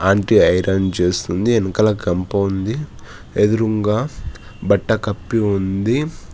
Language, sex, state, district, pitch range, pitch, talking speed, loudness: Telugu, male, Telangana, Hyderabad, 95-110 Hz, 100 Hz, 95 wpm, -18 LUFS